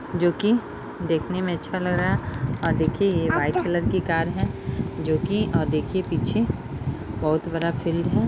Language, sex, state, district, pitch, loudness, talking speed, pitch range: Hindi, female, Uttar Pradesh, Budaun, 165 Hz, -24 LUFS, 165 wpm, 155-180 Hz